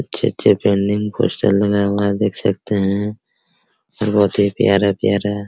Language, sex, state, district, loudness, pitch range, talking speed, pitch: Hindi, male, Bihar, Araria, -17 LUFS, 100-105 Hz, 165 wpm, 100 Hz